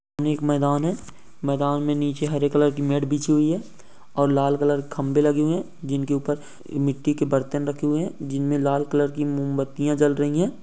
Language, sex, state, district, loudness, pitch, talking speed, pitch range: Hindi, female, Uttar Pradesh, Jyotiba Phule Nagar, -23 LUFS, 145 Hz, 210 wpm, 140-150 Hz